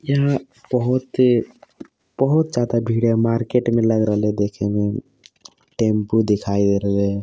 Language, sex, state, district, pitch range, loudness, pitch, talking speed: Hindi, male, Bihar, Jamui, 105-125 Hz, -19 LUFS, 115 Hz, 115 wpm